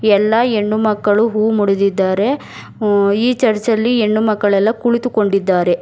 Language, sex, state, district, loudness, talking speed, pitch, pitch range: Kannada, female, Karnataka, Bangalore, -15 LUFS, 125 wpm, 215 Hz, 200-225 Hz